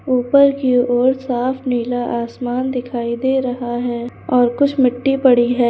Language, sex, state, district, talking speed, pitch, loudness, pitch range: Hindi, female, Uttar Pradesh, Lucknow, 160 wpm, 250 Hz, -17 LUFS, 245-260 Hz